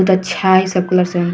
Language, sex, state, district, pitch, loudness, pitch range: Hindi, female, Bihar, Vaishali, 185 Hz, -14 LUFS, 180-190 Hz